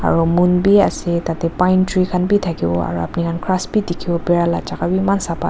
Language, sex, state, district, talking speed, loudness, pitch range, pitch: Nagamese, female, Nagaland, Dimapur, 250 wpm, -17 LUFS, 170-185 Hz, 175 Hz